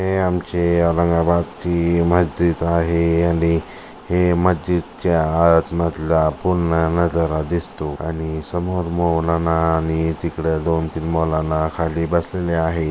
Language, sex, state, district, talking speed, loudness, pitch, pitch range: Marathi, female, Maharashtra, Aurangabad, 100 wpm, -19 LUFS, 85 Hz, 80-85 Hz